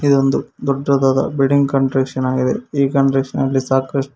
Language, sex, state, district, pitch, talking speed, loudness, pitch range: Kannada, male, Karnataka, Koppal, 135 Hz, 130 wpm, -17 LUFS, 135-140 Hz